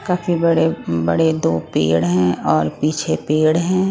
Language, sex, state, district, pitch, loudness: Hindi, female, Bihar, West Champaran, 145 Hz, -17 LUFS